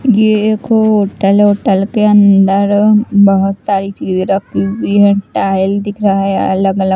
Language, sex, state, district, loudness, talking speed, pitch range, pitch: Hindi, female, Chandigarh, Chandigarh, -11 LUFS, 170 wpm, 195-210 Hz, 200 Hz